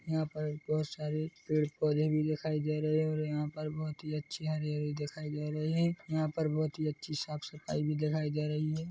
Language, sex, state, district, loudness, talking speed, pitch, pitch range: Hindi, male, Chhattisgarh, Bilaspur, -34 LUFS, 235 wpm, 155 Hz, 150-155 Hz